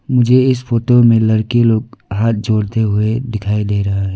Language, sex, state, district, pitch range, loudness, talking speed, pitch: Hindi, female, Arunachal Pradesh, Lower Dibang Valley, 105-120 Hz, -14 LUFS, 190 wpm, 110 Hz